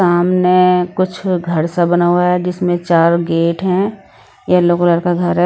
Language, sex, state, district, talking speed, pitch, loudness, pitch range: Hindi, female, Odisha, Sambalpur, 175 wpm, 175 Hz, -14 LUFS, 175-180 Hz